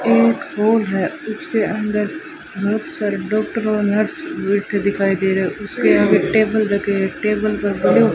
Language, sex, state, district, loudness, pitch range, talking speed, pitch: Hindi, female, Rajasthan, Bikaner, -18 LUFS, 195-215 Hz, 160 wpm, 210 Hz